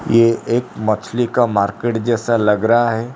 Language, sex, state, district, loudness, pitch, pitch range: Hindi, male, Odisha, Khordha, -17 LUFS, 115 Hz, 110-120 Hz